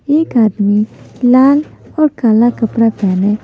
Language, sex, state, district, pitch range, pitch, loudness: Hindi, female, Maharashtra, Mumbai Suburban, 215-270 Hz, 230 Hz, -12 LUFS